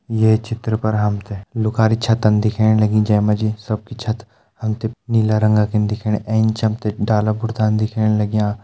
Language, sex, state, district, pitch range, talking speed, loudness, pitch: Hindi, male, Uttarakhand, Tehri Garhwal, 105-110 Hz, 195 wpm, -18 LUFS, 110 Hz